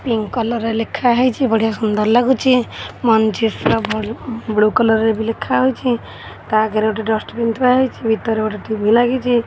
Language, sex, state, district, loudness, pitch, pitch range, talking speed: Odia, female, Odisha, Khordha, -17 LUFS, 225 Hz, 220-245 Hz, 145 wpm